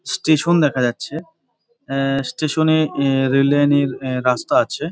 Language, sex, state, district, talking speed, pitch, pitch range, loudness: Bengali, male, West Bengal, Dakshin Dinajpur, 145 wpm, 140 Hz, 135-155 Hz, -18 LUFS